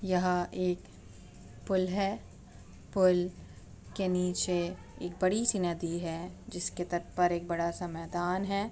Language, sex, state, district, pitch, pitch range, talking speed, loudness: Hindi, female, Uttar Pradesh, Muzaffarnagar, 180 Hz, 175-185 Hz, 140 wpm, -32 LUFS